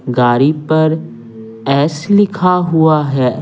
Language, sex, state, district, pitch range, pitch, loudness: Hindi, male, Bihar, Patna, 125-160 Hz, 150 Hz, -13 LUFS